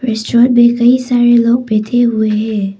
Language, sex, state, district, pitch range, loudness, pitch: Hindi, female, Arunachal Pradesh, Papum Pare, 220-240 Hz, -11 LUFS, 235 Hz